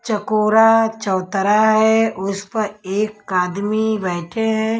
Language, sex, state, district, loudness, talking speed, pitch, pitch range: Hindi, female, Punjab, Kapurthala, -18 LUFS, 110 wpm, 215 Hz, 195-220 Hz